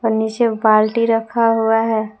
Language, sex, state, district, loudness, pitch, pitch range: Hindi, female, Jharkhand, Palamu, -16 LUFS, 225 Hz, 220-230 Hz